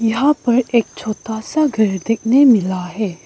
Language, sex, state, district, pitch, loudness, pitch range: Hindi, female, Arunachal Pradesh, Lower Dibang Valley, 225 Hz, -16 LUFS, 210-250 Hz